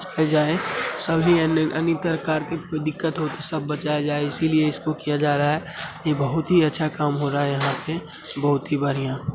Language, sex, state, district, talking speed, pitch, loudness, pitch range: Hindi, male, Uttar Pradesh, Hamirpur, 165 wpm, 155 Hz, -22 LUFS, 145-160 Hz